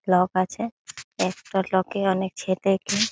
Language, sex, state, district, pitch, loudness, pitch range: Bengali, female, West Bengal, Jalpaiguri, 190 Hz, -25 LUFS, 185-200 Hz